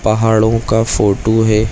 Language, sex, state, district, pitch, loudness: Hindi, male, Chhattisgarh, Bilaspur, 110 Hz, -13 LUFS